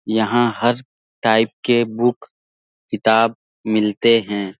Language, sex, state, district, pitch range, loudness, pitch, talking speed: Hindi, male, Bihar, Saran, 105-120 Hz, -18 LUFS, 110 Hz, 115 wpm